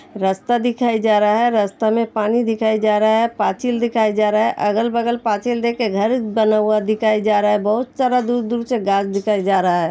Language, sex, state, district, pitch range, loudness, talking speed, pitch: Hindi, female, Uttar Pradesh, Hamirpur, 210-235 Hz, -18 LUFS, 230 wpm, 220 Hz